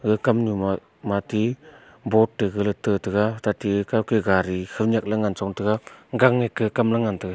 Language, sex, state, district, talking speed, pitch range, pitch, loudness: Wancho, male, Arunachal Pradesh, Longding, 180 wpm, 100-115 Hz, 105 Hz, -23 LUFS